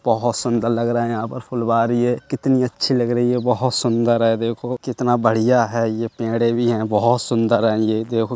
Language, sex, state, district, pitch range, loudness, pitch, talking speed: Hindi, male, Uttar Pradesh, Budaun, 115-125 Hz, -19 LUFS, 120 Hz, 215 wpm